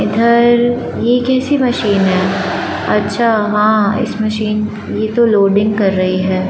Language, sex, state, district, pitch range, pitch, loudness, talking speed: Hindi, female, Chandigarh, Chandigarh, 200-235 Hz, 215 Hz, -14 LUFS, 140 wpm